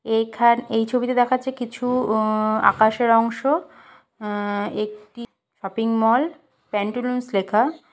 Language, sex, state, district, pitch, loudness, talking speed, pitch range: Bengali, female, West Bengal, Purulia, 230 Hz, -21 LUFS, 105 wpm, 215-250 Hz